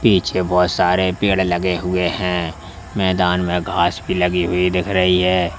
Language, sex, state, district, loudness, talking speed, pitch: Hindi, male, Uttar Pradesh, Lalitpur, -18 LUFS, 170 wpm, 90 Hz